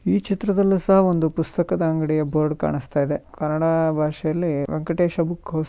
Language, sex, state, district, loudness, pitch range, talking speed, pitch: Kannada, male, Karnataka, Shimoga, -21 LUFS, 155-175 Hz, 150 wpm, 160 Hz